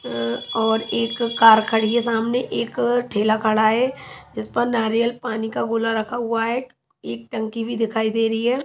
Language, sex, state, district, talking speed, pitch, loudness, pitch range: Hindi, female, Chhattisgarh, Raipur, 180 wpm, 225 Hz, -20 LUFS, 220-235 Hz